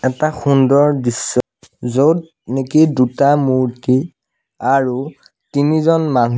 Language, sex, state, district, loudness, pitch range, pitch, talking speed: Assamese, male, Assam, Sonitpur, -15 LUFS, 125-150 Hz, 135 Hz, 95 wpm